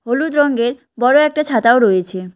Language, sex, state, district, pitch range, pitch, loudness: Bengali, female, West Bengal, Cooch Behar, 230-290 Hz, 245 Hz, -14 LUFS